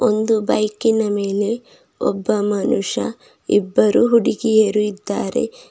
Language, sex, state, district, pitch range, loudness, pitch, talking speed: Kannada, female, Karnataka, Bidar, 205-225 Hz, -18 LUFS, 215 Hz, 85 wpm